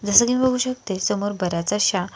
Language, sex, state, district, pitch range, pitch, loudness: Marathi, female, Maharashtra, Solapur, 190-245 Hz, 205 Hz, -21 LUFS